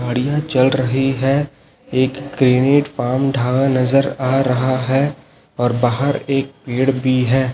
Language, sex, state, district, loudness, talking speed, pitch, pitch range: Hindi, male, Chhattisgarh, Raipur, -17 LUFS, 145 wpm, 135 Hz, 130-135 Hz